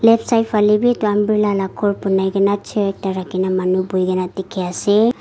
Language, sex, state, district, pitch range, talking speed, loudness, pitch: Nagamese, female, Nagaland, Kohima, 185-210 Hz, 220 wpm, -18 LUFS, 200 Hz